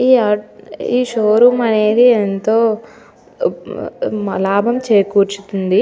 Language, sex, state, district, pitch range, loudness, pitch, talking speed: Telugu, female, Telangana, Nalgonda, 200-235 Hz, -15 LUFS, 215 Hz, 70 wpm